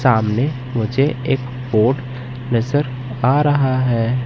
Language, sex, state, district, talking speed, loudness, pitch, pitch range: Hindi, male, Madhya Pradesh, Katni, 115 wpm, -18 LUFS, 125 Hz, 120-135 Hz